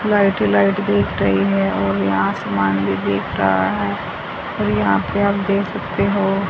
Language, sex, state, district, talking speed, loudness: Hindi, female, Haryana, Charkhi Dadri, 185 wpm, -18 LUFS